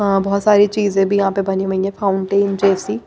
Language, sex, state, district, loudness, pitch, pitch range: Hindi, female, Maharashtra, Mumbai Suburban, -16 LUFS, 195 Hz, 195-205 Hz